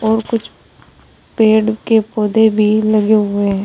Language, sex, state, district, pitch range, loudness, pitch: Hindi, female, Uttar Pradesh, Saharanpur, 210-220 Hz, -14 LUFS, 220 Hz